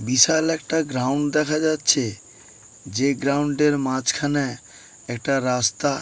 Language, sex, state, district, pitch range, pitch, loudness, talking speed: Bengali, male, West Bengal, Paschim Medinipur, 125-150 Hz, 135 Hz, -21 LUFS, 110 wpm